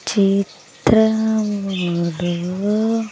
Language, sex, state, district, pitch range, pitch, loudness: Telugu, female, Andhra Pradesh, Sri Satya Sai, 180-220 Hz, 200 Hz, -19 LUFS